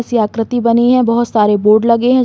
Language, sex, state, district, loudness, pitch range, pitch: Hindi, female, Uttar Pradesh, Hamirpur, -12 LUFS, 220-240 Hz, 235 Hz